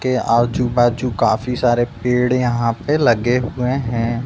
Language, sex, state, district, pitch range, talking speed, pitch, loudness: Hindi, male, Uttar Pradesh, Budaun, 120-125 Hz, 155 wpm, 120 Hz, -17 LUFS